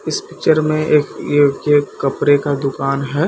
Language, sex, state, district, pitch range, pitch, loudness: Hindi, male, Bihar, Katihar, 140-155 Hz, 145 Hz, -16 LUFS